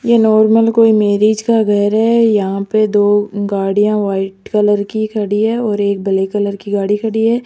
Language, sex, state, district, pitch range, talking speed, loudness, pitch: Hindi, female, Rajasthan, Jaipur, 205-220 Hz, 195 wpm, -14 LUFS, 210 Hz